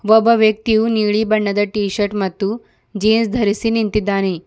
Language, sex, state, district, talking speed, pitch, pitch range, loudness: Kannada, female, Karnataka, Bidar, 135 wpm, 215 Hz, 205-220 Hz, -16 LUFS